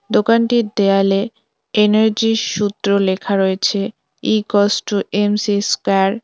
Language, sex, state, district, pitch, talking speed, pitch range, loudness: Bengali, female, West Bengal, Cooch Behar, 205 Hz, 135 wpm, 195-220 Hz, -16 LUFS